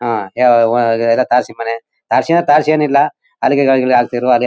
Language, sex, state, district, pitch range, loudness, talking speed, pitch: Kannada, male, Karnataka, Mysore, 120-140 Hz, -13 LUFS, 190 wpm, 125 Hz